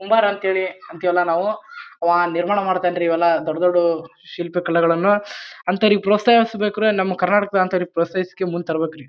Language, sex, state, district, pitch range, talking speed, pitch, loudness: Kannada, male, Karnataka, Bijapur, 170-205 Hz, 140 wpm, 180 Hz, -19 LUFS